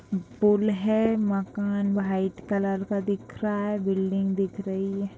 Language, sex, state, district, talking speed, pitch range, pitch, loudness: Hindi, female, Bihar, East Champaran, 150 wpm, 195-205 Hz, 200 Hz, -26 LUFS